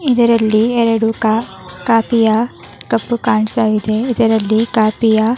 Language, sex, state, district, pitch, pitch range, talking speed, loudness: Kannada, female, Karnataka, Raichur, 225 Hz, 220-235 Hz, 110 wpm, -14 LUFS